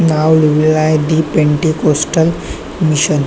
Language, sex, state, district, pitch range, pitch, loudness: Marathi, male, Maharashtra, Chandrapur, 150-160 Hz, 155 Hz, -12 LUFS